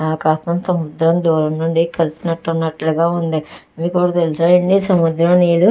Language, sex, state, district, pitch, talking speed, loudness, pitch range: Telugu, female, Andhra Pradesh, Chittoor, 165 Hz, 145 wpm, -16 LUFS, 160-175 Hz